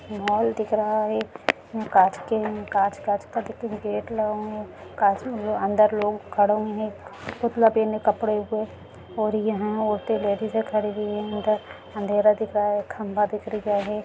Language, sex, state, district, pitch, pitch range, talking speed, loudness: Hindi, female, Bihar, Jamui, 210 Hz, 210-215 Hz, 160 wpm, -24 LUFS